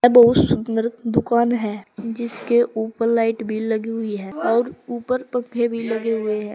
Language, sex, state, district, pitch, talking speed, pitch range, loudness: Hindi, female, Uttar Pradesh, Saharanpur, 230 Hz, 165 wpm, 220-240 Hz, -21 LUFS